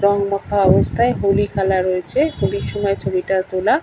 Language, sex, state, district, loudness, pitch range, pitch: Bengali, male, West Bengal, Kolkata, -18 LUFS, 190-200 Hz, 195 Hz